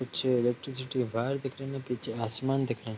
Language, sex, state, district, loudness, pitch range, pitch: Hindi, male, Bihar, Darbhanga, -31 LUFS, 120-135 Hz, 125 Hz